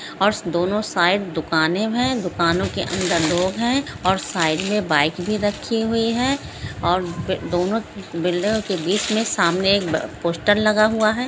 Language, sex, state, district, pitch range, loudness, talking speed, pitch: Hindi, female, Andhra Pradesh, Krishna, 175-215 Hz, -20 LUFS, 155 wpm, 190 Hz